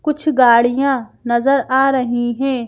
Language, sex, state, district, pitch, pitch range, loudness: Hindi, female, Madhya Pradesh, Bhopal, 255 Hz, 240-275 Hz, -15 LUFS